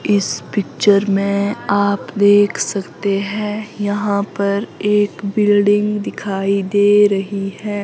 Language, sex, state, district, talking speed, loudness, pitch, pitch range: Hindi, female, Himachal Pradesh, Shimla, 120 wpm, -17 LUFS, 205 Hz, 200-205 Hz